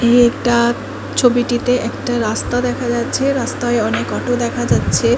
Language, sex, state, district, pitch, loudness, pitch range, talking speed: Bengali, female, West Bengal, Kolkata, 240 Hz, -17 LUFS, 235-250 Hz, 130 wpm